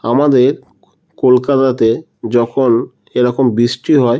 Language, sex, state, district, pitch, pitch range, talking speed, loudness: Bengali, female, West Bengal, Kolkata, 125 Hz, 120-135 Hz, 100 wpm, -13 LUFS